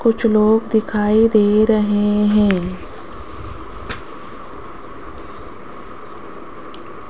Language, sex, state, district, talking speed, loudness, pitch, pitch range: Hindi, female, Rajasthan, Jaipur, 50 wpm, -16 LUFS, 215 Hz, 210-220 Hz